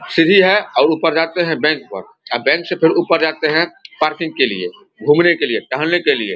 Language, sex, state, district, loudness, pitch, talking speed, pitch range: Hindi, male, Bihar, Vaishali, -15 LUFS, 160 Hz, 225 wpm, 155-175 Hz